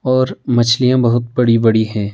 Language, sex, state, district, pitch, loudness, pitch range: Hindi, male, Himachal Pradesh, Shimla, 120 Hz, -14 LUFS, 115-125 Hz